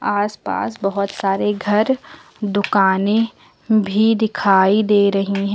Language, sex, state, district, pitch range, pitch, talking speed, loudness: Hindi, female, Uttar Pradesh, Lucknow, 200-215 Hz, 205 Hz, 110 wpm, -18 LUFS